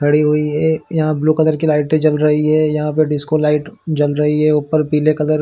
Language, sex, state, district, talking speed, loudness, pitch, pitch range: Hindi, male, Chhattisgarh, Bilaspur, 245 wpm, -15 LUFS, 150 Hz, 150-155 Hz